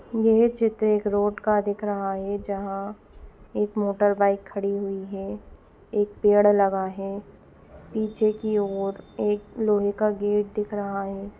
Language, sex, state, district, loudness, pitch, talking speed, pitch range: Hindi, female, Chhattisgarh, Raigarh, -25 LUFS, 205 Hz, 155 wpm, 195-210 Hz